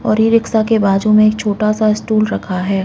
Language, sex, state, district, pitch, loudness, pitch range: Hindi, female, Uttarakhand, Uttarkashi, 215 Hz, -14 LUFS, 205-220 Hz